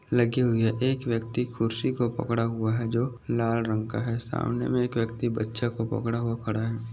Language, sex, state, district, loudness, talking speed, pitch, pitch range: Hindi, male, Maharashtra, Aurangabad, -28 LUFS, 215 wpm, 115 Hz, 115-120 Hz